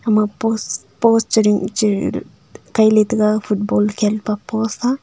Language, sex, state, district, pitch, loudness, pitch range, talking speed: Wancho, female, Arunachal Pradesh, Longding, 215 Hz, -17 LUFS, 210-225 Hz, 130 wpm